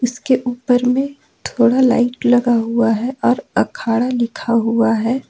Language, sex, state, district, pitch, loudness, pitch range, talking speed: Hindi, female, Jharkhand, Ranchi, 245 Hz, -16 LUFS, 230-250 Hz, 145 wpm